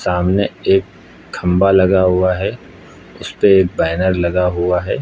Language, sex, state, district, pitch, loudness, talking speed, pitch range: Hindi, male, Uttar Pradesh, Lucknow, 90 Hz, -15 LUFS, 130 wpm, 90-95 Hz